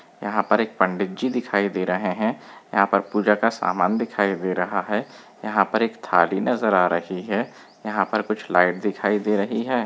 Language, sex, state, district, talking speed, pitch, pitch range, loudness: Hindi, male, Chhattisgarh, Bilaspur, 205 wpm, 100 Hz, 95-105 Hz, -22 LUFS